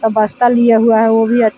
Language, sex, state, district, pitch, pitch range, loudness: Hindi, female, Bihar, Vaishali, 225 Hz, 220-235 Hz, -11 LUFS